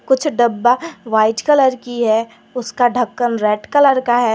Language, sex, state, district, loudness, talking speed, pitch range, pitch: Hindi, female, Jharkhand, Garhwa, -15 LUFS, 165 wpm, 225-260 Hz, 240 Hz